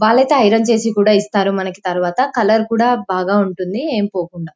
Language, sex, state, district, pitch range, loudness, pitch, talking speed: Telugu, female, Telangana, Karimnagar, 185-225 Hz, -15 LUFS, 210 Hz, 160 wpm